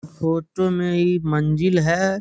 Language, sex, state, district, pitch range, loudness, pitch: Bhojpuri, male, Uttar Pradesh, Gorakhpur, 160-185 Hz, -20 LUFS, 175 Hz